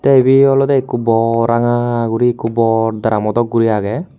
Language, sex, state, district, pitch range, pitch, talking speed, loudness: Chakma, male, Tripura, Unakoti, 115-130 Hz, 115 Hz, 185 wpm, -14 LUFS